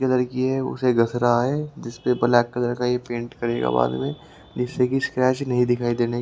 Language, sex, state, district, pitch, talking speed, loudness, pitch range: Hindi, male, Haryana, Rohtak, 125 Hz, 210 wpm, -22 LUFS, 120-130 Hz